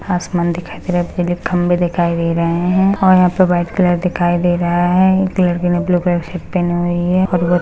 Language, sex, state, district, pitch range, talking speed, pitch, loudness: Hindi, female, Chhattisgarh, Rajnandgaon, 175-180 Hz, 235 wpm, 175 Hz, -15 LUFS